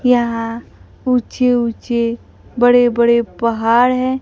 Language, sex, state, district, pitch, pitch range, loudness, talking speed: Hindi, female, Bihar, Kaimur, 240 Hz, 230-250 Hz, -15 LUFS, 100 wpm